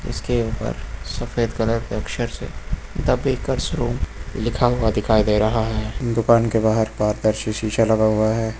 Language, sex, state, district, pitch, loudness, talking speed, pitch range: Hindi, male, Uttar Pradesh, Lucknow, 110 Hz, -21 LUFS, 165 wpm, 110-115 Hz